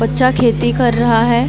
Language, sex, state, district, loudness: Hindi, female, Chhattisgarh, Bilaspur, -13 LUFS